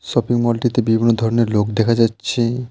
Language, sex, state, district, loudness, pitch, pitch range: Bengali, male, West Bengal, Alipurduar, -17 LUFS, 115 Hz, 115-120 Hz